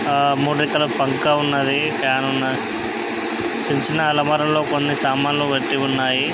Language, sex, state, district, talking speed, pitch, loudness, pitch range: Telugu, male, Andhra Pradesh, Krishna, 125 wpm, 140 Hz, -19 LUFS, 135-150 Hz